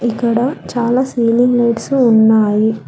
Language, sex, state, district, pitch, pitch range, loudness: Telugu, female, Telangana, Hyderabad, 235 Hz, 220-245 Hz, -13 LUFS